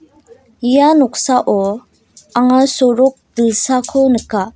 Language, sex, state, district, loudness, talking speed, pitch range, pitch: Garo, female, Meghalaya, West Garo Hills, -13 LUFS, 80 wpm, 230-265 Hz, 250 Hz